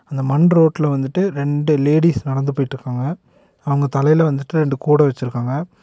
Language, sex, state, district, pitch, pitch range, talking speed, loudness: Tamil, male, Tamil Nadu, Nilgiris, 145 Hz, 135-155 Hz, 145 wpm, -17 LUFS